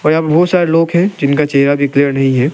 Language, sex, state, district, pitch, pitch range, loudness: Hindi, male, Arunachal Pradesh, Lower Dibang Valley, 150 Hz, 140-165 Hz, -12 LUFS